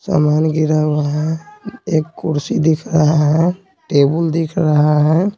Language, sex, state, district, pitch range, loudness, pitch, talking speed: Hindi, male, Bihar, Patna, 150-170 Hz, -16 LUFS, 155 Hz, 145 wpm